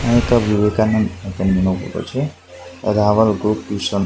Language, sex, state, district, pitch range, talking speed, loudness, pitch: Gujarati, male, Gujarat, Gandhinagar, 95-110 Hz, 145 wpm, -18 LUFS, 105 Hz